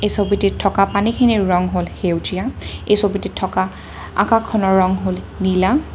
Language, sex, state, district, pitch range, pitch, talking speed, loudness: Assamese, female, Assam, Kamrup Metropolitan, 185-210 Hz, 195 Hz, 140 wpm, -18 LUFS